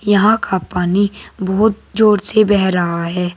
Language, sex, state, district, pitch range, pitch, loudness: Hindi, female, Uttar Pradesh, Saharanpur, 180-215 Hz, 195 Hz, -15 LUFS